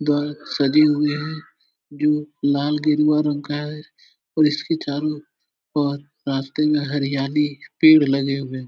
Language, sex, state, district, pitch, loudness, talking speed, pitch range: Hindi, male, Uttar Pradesh, Etah, 150 Hz, -20 LUFS, 145 wpm, 140-150 Hz